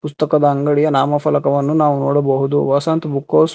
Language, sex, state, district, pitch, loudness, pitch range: Kannada, male, Karnataka, Bangalore, 145 Hz, -16 LUFS, 140-150 Hz